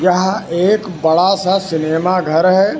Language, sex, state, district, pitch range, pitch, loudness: Hindi, male, Karnataka, Bangalore, 165-190 Hz, 185 Hz, -14 LUFS